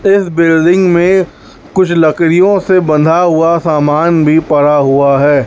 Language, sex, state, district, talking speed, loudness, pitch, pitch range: Hindi, male, Chhattisgarh, Raipur, 145 wpm, -9 LUFS, 165 Hz, 150-180 Hz